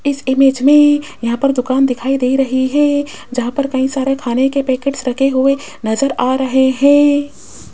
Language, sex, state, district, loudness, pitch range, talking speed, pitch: Hindi, female, Rajasthan, Jaipur, -14 LUFS, 260-280 Hz, 180 wpm, 270 Hz